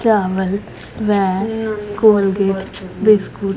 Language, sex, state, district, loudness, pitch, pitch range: Hindi, female, Haryana, Rohtak, -17 LUFS, 200 Hz, 195-215 Hz